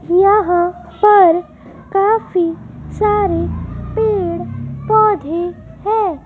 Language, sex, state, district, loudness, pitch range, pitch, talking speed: Hindi, female, Madhya Pradesh, Dhar, -15 LUFS, 350-420 Hz, 390 Hz, 65 wpm